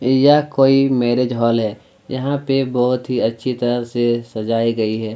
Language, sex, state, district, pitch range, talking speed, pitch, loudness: Hindi, male, Chhattisgarh, Kabirdham, 115-130 Hz, 175 wpm, 120 Hz, -17 LUFS